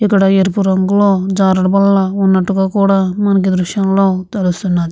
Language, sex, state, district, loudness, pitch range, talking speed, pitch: Telugu, female, Andhra Pradesh, Visakhapatnam, -13 LUFS, 190-195 Hz, 120 wpm, 195 Hz